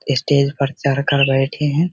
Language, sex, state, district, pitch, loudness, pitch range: Hindi, male, Bihar, Begusarai, 140 Hz, -17 LUFS, 140-145 Hz